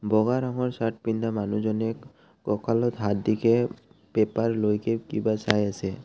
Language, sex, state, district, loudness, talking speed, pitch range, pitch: Assamese, male, Assam, Kamrup Metropolitan, -26 LUFS, 110 wpm, 105-115 Hz, 110 Hz